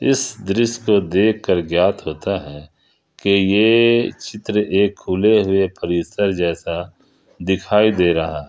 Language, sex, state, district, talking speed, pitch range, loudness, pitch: Hindi, male, Jharkhand, Ranchi, 135 wpm, 90-110 Hz, -18 LUFS, 100 Hz